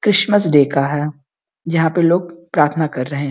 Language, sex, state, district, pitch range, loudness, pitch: Hindi, female, Uttar Pradesh, Gorakhpur, 145-170 Hz, -16 LUFS, 155 Hz